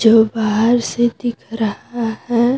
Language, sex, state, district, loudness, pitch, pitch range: Hindi, female, Jharkhand, Deoghar, -17 LUFS, 230 Hz, 220-240 Hz